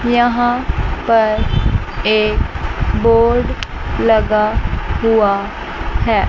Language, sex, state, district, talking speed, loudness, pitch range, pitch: Hindi, female, Chandigarh, Chandigarh, 65 wpm, -16 LUFS, 215-240 Hz, 225 Hz